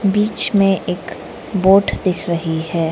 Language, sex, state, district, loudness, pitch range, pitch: Hindi, female, Arunachal Pradesh, Lower Dibang Valley, -17 LUFS, 170-200 Hz, 190 Hz